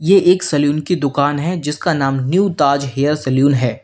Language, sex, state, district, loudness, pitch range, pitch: Hindi, male, Uttar Pradesh, Lalitpur, -16 LUFS, 140-175 Hz, 145 Hz